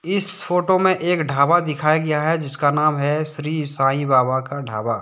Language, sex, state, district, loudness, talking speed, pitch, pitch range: Hindi, male, Jharkhand, Deoghar, -19 LUFS, 180 wpm, 155 Hz, 140-170 Hz